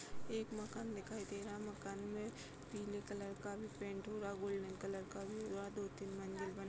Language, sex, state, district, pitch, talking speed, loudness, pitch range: Hindi, female, Uttar Pradesh, Hamirpur, 200 Hz, 215 wpm, -47 LUFS, 195-210 Hz